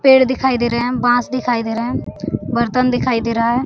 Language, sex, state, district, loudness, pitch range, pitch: Hindi, female, Jharkhand, Sahebganj, -17 LUFS, 235-255 Hz, 245 Hz